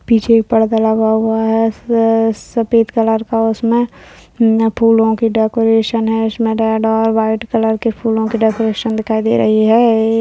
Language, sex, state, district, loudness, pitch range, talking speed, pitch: Hindi, female, Bihar, Kishanganj, -14 LUFS, 220-225 Hz, 160 wpm, 225 Hz